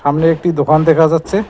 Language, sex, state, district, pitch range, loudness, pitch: Bengali, male, West Bengal, Cooch Behar, 155-165 Hz, -13 LUFS, 160 Hz